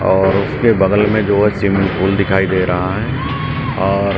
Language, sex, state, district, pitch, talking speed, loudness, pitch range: Hindi, male, Maharashtra, Mumbai Suburban, 100 Hz, 200 wpm, -15 LUFS, 95-110 Hz